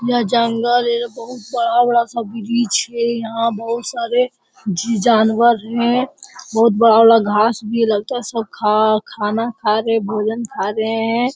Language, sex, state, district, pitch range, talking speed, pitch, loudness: Hindi, male, Bihar, Jamui, 220-240 Hz, 175 wpm, 230 Hz, -17 LUFS